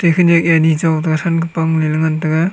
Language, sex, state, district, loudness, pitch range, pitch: Wancho, male, Arunachal Pradesh, Longding, -14 LUFS, 160-170 Hz, 160 Hz